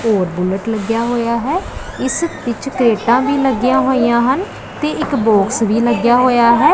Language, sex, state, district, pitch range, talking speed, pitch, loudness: Punjabi, female, Punjab, Pathankot, 225-265 Hz, 170 wpm, 240 Hz, -15 LUFS